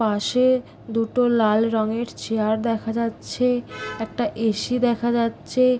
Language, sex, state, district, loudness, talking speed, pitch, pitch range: Bengali, female, West Bengal, Paschim Medinipur, -22 LUFS, 125 wpm, 230 Hz, 220-245 Hz